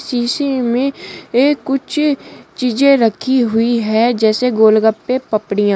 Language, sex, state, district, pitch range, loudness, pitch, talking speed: Hindi, female, Uttar Pradesh, Shamli, 220-270 Hz, -15 LUFS, 245 Hz, 125 wpm